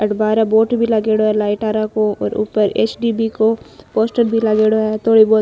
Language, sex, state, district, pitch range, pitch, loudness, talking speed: Marwari, female, Rajasthan, Nagaur, 215-225 Hz, 220 Hz, -16 LUFS, 245 wpm